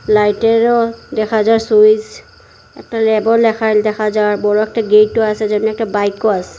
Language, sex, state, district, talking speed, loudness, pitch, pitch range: Bengali, female, Assam, Hailakandi, 155 wpm, -13 LUFS, 215 Hz, 210-225 Hz